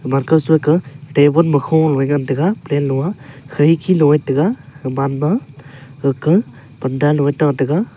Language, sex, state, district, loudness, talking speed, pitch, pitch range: Wancho, male, Arunachal Pradesh, Longding, -16 LUFS, 175 wpm, 145 Hz, 140-160 Hz